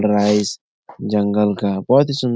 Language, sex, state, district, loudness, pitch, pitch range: Hindi, male, Bihar, Jahanabad, -17 LUFS, 105 Hz, 105-120 Hz